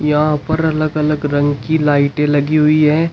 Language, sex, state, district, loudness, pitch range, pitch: Hindi, male, Uttar Pradesh, Shamli, -15 LUFS, 145-155 Hz, 150 Hz